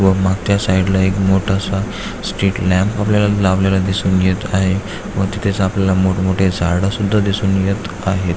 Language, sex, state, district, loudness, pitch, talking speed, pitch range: Marathi, male, Maharashtra, Aurangabad, -16 LUFS, 95 Hz, 165 wpm, 95-100 Hz